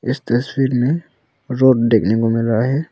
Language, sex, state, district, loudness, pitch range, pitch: Hindi, male, Arunachal Pradesh, Longding, -16 LUFS, 115-135 Hz, 125 Hz